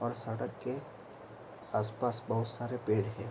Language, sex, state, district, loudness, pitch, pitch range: Hindi, male, Bihar, Araria, -36 LUFS, 115 Hz, 110-120 Hz